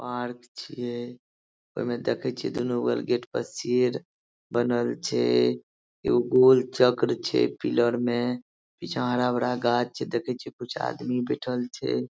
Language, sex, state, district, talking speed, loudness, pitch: Maithili, male, Bihar, Madhepura, 145 wpm, -26 LUFS, 120 Hz